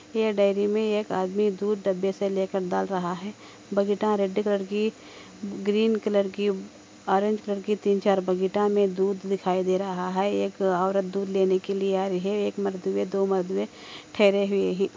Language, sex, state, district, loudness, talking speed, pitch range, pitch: Hindi, female, Andhra Pradesh, Anantapur, -25 LUFS, 160 wpm, 190-205 Hz, 195 Hz